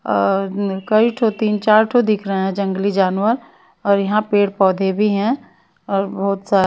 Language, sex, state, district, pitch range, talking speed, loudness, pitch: Hindi, female, Maharashtra, Mumbai Suburban, 195-215 Hz, 180 wpm, -18 LUFS, 200 Hz